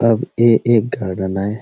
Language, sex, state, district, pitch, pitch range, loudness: Chhattisgarhi, male, Chhattisgarh, Rajnandgaon, 115 Hz, 100-115 Hz, -16 LUFS